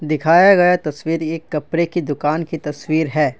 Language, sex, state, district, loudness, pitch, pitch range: Hindi, male, Assam, Kamrup Metropolitan, -17 LUFS, 160 Hz, 150-165 Hz